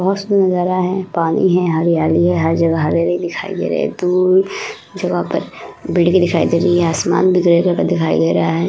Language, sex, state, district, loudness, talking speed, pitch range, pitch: Hindi, female, Uttar Pradesh, Muzaffarnagar, -15 LUFS, 215 wpm, 165-185 Hz, 175 Hz